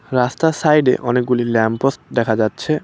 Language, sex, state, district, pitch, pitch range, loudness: Bengali, male, West Bengal, Cooch Behar, 125 Hz, 115-150 Hz, -17 LUFS